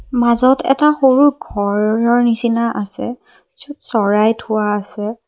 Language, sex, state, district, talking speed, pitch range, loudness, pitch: Assamese, female, Assam, Kamrup Metropolitan, 115 wpm, 215-260 Hz, -15 LUFS, 235 Hz